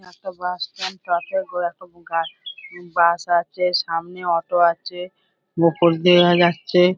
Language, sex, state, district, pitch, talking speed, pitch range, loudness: Bengali, female, West Bengal, Dakshin Dinajpur, 175 Hz, 145 wpm, 170-180 Hz, -20 LUFS